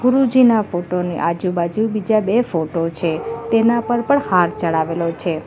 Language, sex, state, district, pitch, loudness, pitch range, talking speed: Gujarati, female, Gujarat, Valsad, 185 Hz, -18 LUFS, 170-230 Hz, 155 wpm